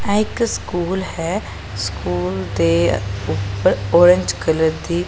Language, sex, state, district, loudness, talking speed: Punjabi, female, Punjab, Pathankot, -18 LUFS, 130 wpm